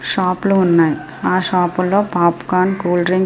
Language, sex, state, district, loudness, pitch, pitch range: Telugu, female, Andhra Pradesh, Srikakulam, -16 LUFS, 180 Hz, 175-190 Hz